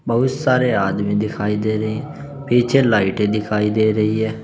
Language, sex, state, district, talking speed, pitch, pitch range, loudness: Hindi, male, Uttar Pradesh, Saharanpur, 175 wpm, 110 Hz, 105-125 Hz, -18 LUFS